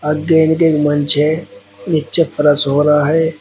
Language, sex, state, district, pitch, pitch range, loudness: Hindi, male, Uttar Pradesh, Shamli, 150 Hz, 145-160 Hz, -14 LUFS